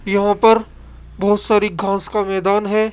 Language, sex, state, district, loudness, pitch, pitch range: Hindi, male, Rajasthan, Jaipur, -17 LUFS, 205 Hz, 195-215 Hz